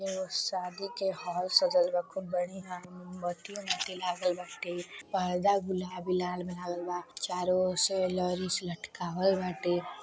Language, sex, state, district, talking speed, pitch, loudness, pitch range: Bhojpuri, female, Uttar Pradesh, Deoria, 150 wpm, 180 Hz, -32 LUFS, 180-190 Hz